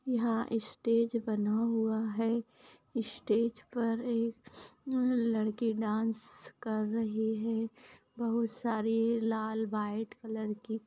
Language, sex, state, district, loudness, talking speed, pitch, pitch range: Hindi, female, Maharashtra, Aurangabad, -33 LUFS, 105 wpm, 225 Hz, 220-230 Hz